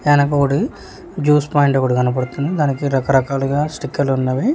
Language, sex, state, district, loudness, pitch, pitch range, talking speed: Telugu, male, Telangana, Hyderabad, -17 LUFS, 140 Hz, 135-145 Hz, 120 wpm